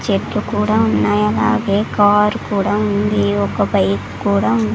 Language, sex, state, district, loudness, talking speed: Telugu, female, Andhra Pradesh, Sri Satya Sai, -16 LUFS, 140 wpm